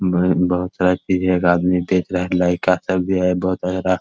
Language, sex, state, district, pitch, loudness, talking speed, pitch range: Hindi, male, Bihar, Muzaffarpur, 90 Hz, -18 LUFS, 285 wpm, 90-95 Hz